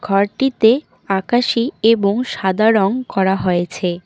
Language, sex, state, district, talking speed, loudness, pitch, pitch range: Bengali, female, West Bengal, Cooch Behar, 105 wpm, -16 LUFS, 205 Hz, 190-240 Hz